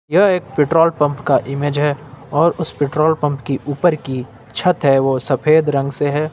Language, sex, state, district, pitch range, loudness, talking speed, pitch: Hindi, male, Jharkhand, Ranchi, 135-155 Hz, -17 LUFS, 200 wpm, 145 Hz